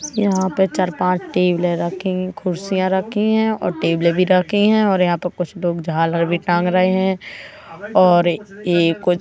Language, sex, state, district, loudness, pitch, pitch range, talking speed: Hindi, female, Madhya Pradesh, Katni, -18 LUFS, 180 Hz, 175-190 Hz, 180 wpm